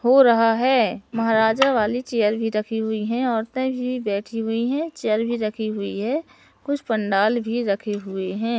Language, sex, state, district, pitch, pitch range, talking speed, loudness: Hindi, male, Madhya Pradesh, Katni, 225 Hz, 215-250 Hz, 180 wpm, -22 LUFS